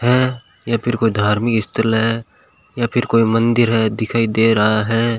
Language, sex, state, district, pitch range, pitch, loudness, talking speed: Hindi, male, Rajasthan, Bikaner, 110-120 Hz, 115 Hz, -17 LUFS, 185 wpm